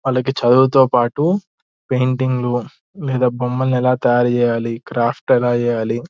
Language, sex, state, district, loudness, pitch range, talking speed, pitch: Telugu, male, Telangana, Nalgonda, -17 LUFS, 120-130 Hz, 100 wpm, 125 Hz